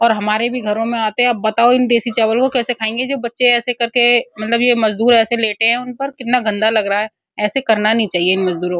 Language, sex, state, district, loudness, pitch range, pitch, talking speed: Hindi, female, Uttar Pradesh, Muzaffarnagar, -15 LUFS, 215-245 Hz, 230 Hz, 275 wpm